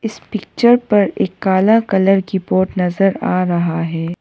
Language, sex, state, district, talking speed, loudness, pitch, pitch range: Hindi, female, Arunachal Pradesh, Papum Pare, 170 wpm, -15 LUFS, 190 Hz, 180-215 Hz